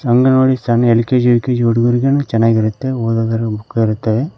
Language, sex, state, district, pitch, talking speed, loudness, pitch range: Kannada, male, Karnataka, Koppal, 120 Hz, 125 wpm, -14 LUFS, 115-130 Hz